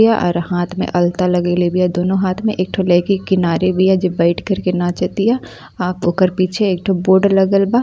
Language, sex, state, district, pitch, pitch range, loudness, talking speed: Bhojpuri, female, Uttar Pradesh, Ghazipur, 185 Hz, 175-195 Hz, -16 LUFS, 205 wpm